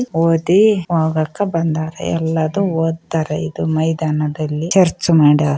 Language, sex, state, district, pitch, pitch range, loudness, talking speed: Kannada, female, Karnataka, Raichur, 160 Hz, 155-165 Hz, -16 LUFS, 120 wpm